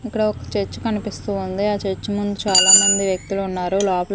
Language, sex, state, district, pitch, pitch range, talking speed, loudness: Telugu, female, Andhra Pradesh, Manyam, 200 Hz, 190-205 Hz, 175 wpm, -17 LUFS